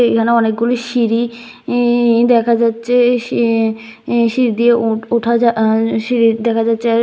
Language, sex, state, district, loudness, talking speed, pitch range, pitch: Bengali, female, Tripura, West Tripura, -14 LUFS, 130 wpm, 225-240 Hz, 235 Hz